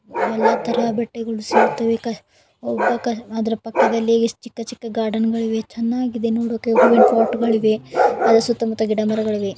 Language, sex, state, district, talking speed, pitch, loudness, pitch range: Kannada, female, Karnataka, Belgaum, 105 wpm, 230 Hz, -19 LUFS, 225-235 Hz